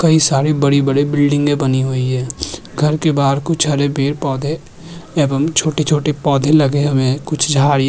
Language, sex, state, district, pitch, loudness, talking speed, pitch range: Hindi, male, Uttarakhand, Tehri Garhwal, 145 Hz, -15 LUFS, 165 wpm, 140-155 Hz